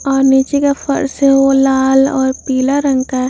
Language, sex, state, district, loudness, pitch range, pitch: Hindi, female, Bihar, Vaishali, -13 LUFS, 265-275 Hz, 270 Hz